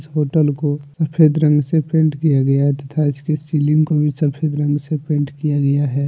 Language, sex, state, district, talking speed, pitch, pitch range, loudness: Hindi, male, Jharkhand, Deoghar, 195 wpm, 150 Hz, 145-155 Hz, -17 LUFS